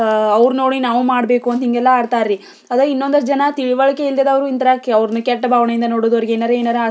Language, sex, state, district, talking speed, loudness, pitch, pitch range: Kannada, female, Karnataka, Belgaum, 190 wpm, -15 LUFS, 245 Hz, 235-265 Hz